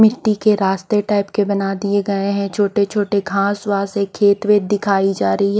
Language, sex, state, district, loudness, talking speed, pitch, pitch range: Hindi, female, Odisha, Khordha, -17 LUFS, 215 wpm, 200 Hz, 200-205 Hz